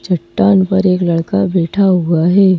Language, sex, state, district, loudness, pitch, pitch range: Hindi, female, Madhya Pradesh, Bhopal, -13 LUFS, 185 Hz, 170-195 Hz